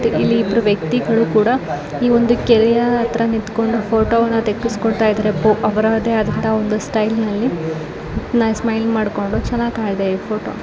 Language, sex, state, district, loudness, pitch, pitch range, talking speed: Kannada, female, Karnataka, Dakshina Kannada, -17 LUFS, 225 Hz, 215-230 Hz, 145 wpm